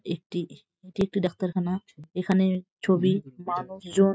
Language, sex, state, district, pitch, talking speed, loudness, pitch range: Bengali, female, West Bengal, Jhargram, 185 Hz, 100 wpm, -27 LUFS, 180-190 Hz